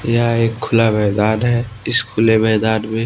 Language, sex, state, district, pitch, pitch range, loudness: Hindi, male, Maharashtra, Washim, 110 Hz, 110-115 Hz, -16 LUFS